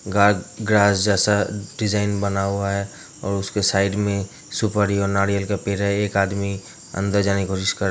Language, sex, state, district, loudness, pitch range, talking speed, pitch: Hindi, male, Uttar Pradesh, Hamirpur, -21 LUFS, 100-105 Hz, 180 wpm, 100 Hz